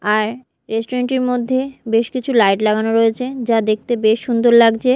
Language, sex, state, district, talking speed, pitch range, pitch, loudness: Bengali, female, Odisha, Malkangiri, 170 wpm, 220-250 Hz, 235 Hz, -16 LUFS